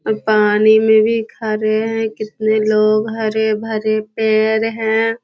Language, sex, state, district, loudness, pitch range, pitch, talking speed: Hindi, female, Bihar, Jahanabad, -16 LUFS, 215-220 Hz, 220 Hz, 135 wpm